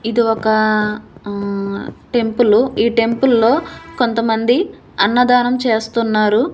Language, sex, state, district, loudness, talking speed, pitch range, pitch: Telugu, female, Andhra Pradesh, Manyam, -16 LUFS, 80 wpm, 215-240 Hz, 225 Hz